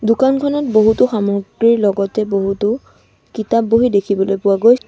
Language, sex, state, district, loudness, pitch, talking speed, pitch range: Assamese, female, Assam, Sonitpur, -15 LUFS, 220 Hz, 125 wpm, 200-230 Hz